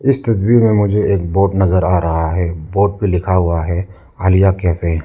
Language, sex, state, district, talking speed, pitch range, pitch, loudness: Hindi, male, Arunachal Pradesh, Lower Dibang Valley, 215 wpm, 85-100 Hz, 95 Hz, -15 LUFS